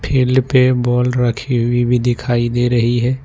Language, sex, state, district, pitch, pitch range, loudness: Hindi, male, Jharkhand, Ranchi, 125 Hz, 120-130 Hz, -15 LUFS